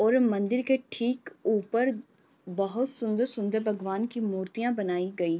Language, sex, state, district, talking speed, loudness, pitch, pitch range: Hindi, female, Uttar Pradesh, Varanasi, 120 wpm, -29 LUFS, 220 Hz, 200-245 Hz